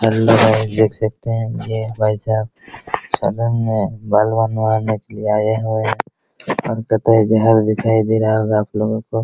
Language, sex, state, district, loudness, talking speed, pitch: Hindi, male, Bihar, Araria, -17 LUFS, 105 wpm, 110 Hz